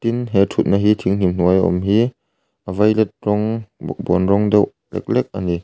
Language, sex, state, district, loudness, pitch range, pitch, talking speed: Mizo, male, Mizoram, Aizawl, -18 LUFS, 95-105 Hz, 100 Hz, 200 wpm